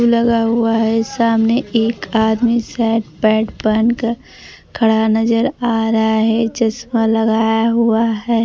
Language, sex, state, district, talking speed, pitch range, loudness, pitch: Hindi, female, Bihar, Kaimur, 135 wpm, 220-230 Hz, -15 LUFS, 225 Hz